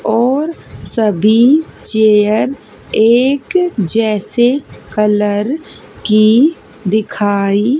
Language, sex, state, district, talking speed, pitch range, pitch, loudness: Hindi, female, Haryana, Jhajjar, 60 wpm, 210-270 Hz, 220 Hz, -13 LUFS